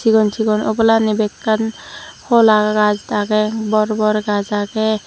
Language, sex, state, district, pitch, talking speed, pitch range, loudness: Chakma, female, Tripura, Dhalai, 215 Hz, 120 wpm, 210-220 Hz, -16 LUFS